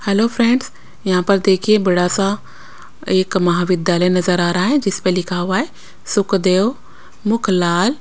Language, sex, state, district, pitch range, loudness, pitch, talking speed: Hindi, female, Bihar, West Champaran, 180-215 Hz, -17 LUFS, 190 Hz, 155 wpm